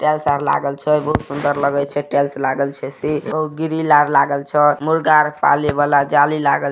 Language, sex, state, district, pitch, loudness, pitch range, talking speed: Maithili, male, Bihar, Samastipur, 145 Hz, -17 LUFS, 140-150 Hz, 170 wpm